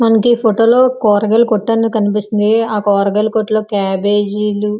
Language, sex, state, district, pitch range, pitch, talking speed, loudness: Telugu, female, Andhra Pradesh, Visakhapatnam, 205-225 Hz, 215 Hz, 140 wpm, -13 LUFS